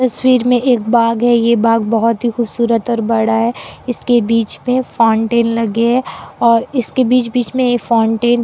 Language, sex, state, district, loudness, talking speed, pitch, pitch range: Hindi, female, Bihar, Kishanganj, -14 LUFS, 185 wpm, 235 Hz, 230-245 Hz